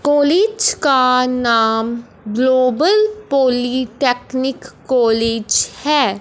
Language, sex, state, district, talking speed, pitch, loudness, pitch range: Hindi, male, Punjab, Fazilka, 70 wpm, 255 Hz, -16 LUFS, 235-290 Hz